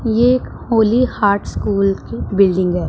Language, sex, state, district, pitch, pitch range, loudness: Hindi, female, Punjab, Pathankot, 205 Hz, 195-235 Hz, -16 LUFS